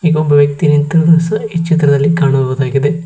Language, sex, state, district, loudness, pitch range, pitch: Kannada, male, Karnataka, Koppal, -12 LUFS, 145-165 Hz, 150 Hz